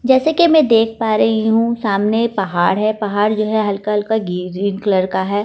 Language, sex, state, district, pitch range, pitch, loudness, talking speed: Hindi, female, Delhi, New Delhi, 200-225 Hz, 215 Hz, -16 LUFS, 210 wpm